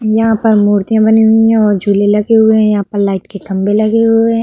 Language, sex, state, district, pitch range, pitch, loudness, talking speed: Hindi, female, Uttar Pradesh, Budaun, 205-225 Hz, 215 Hz, -11 LUFS, 255 wpm